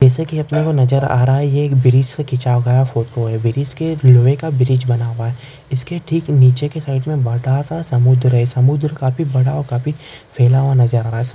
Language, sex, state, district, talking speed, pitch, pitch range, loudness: Hindi, male, Maharashtra, Chandrapur, 220 wpm, 130 Hz, 125-145 Hz, -15 LUFS